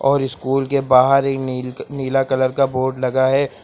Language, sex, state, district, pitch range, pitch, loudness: Hindi, male, Uttar Pradesh, Lucknow, 130-135 Hz, 135 Hz, -18 LUFS